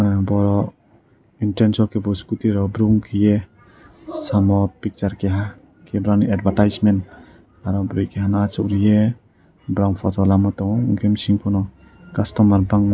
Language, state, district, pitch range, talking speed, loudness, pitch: Kokborok, Tripura, West Tripura, 100-105 Hz, 120 wpm, -19 LUFS, 100 Hz